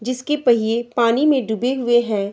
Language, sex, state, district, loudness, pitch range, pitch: Hindi, female, Bihar, Sitamarhi, -18 LUFS, 230-255 Hz, 240 Hz